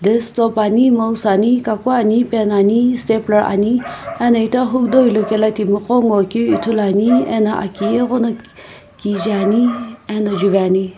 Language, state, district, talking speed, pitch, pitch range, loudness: Sumi, Nagaland, Kohima, 140 wpm, 220 Hz, 210-240 Hz, -15 LUFS